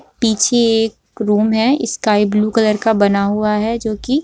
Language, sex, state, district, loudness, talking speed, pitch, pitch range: Hindi, female, Bihar, Supaul, -15 LUFS, 200 wpm, 220 Hz, 210-230 Hz